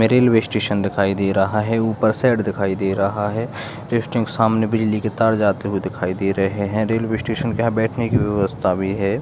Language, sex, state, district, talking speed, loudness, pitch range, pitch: Hindi, male, Bihar, Jahanabad, 215 wpm, -20 LUFS, 100-115 Hz, 110 Hz